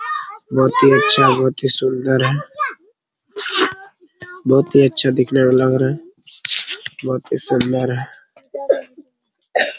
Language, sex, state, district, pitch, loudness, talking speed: Hindi, male, Bihar, Araria, 135 Hz, -16 LUFS, 125 wpm